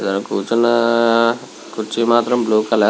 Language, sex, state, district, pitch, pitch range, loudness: Telugu, male, Andhra Pradesh, Visakhapatnam, 115 Hz, 110-120 Hz, -16 LUFS